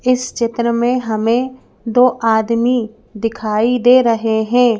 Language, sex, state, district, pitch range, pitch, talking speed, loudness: Hindi, female, Madhya Pradesh, Bhopal, 225-245 Hz, 235 Hz, 125 wpm, -15 LUFS